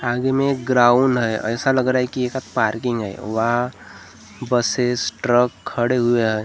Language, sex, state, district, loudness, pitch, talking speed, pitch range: Hindi, male, Maharashtra, Gondia, -19 LUFS, 120 Hz, 185 wpm, 115-125 Hz